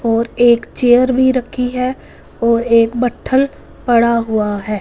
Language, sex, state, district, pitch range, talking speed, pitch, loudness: Hindi, female, Punjab, Fazilka, 230-250 Hz, 150 wpm, 240 Hz, -14 LUFS